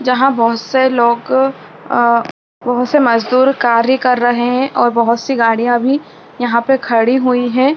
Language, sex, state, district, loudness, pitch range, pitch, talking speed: Hindi, female, Bihar, Saran, -13 LUFS, 235-260 Hz, 245 Hz, 170 wpm